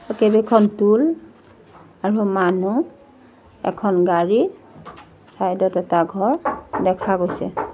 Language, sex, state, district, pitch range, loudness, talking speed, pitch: Assamese, female, Assam, Sonitpur, 185-225 Hz, -19 LUFS, 100 wpm, 200 Hz